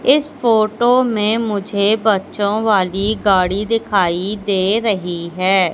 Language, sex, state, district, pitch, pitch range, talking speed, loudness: Hindi, female, Madhya Pradesh, Katni, 205 Hz, 195-220 Hz, 115 wpm, -16 LUFS